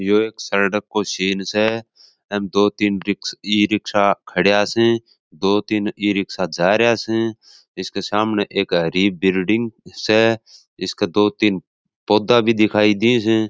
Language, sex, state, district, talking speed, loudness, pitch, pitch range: Marwari, male, Rajasthan, Churu, 150 wpm, -18 LUFS, 105 Hz, 100-110 Hz